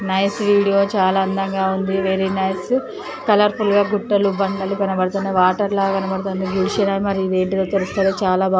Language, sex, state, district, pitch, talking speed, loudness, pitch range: Telugu, female, Andhra Pradesh, Chittoor, 195 Hz, 155 wpm, -19 LUFS, 190-200 Hz